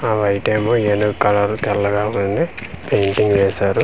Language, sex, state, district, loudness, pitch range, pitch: Telugu, male, Andhra Pradesh, Manyam, -17 LUFS, 100-105 Hz, 105 Hz